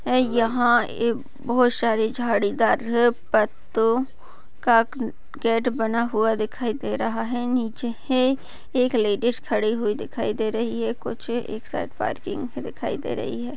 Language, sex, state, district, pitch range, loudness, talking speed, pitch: Hindi, female, Bihar, Madhepura, 220-245 Hz, -23 LUFS, 140 wpm, 230 Hz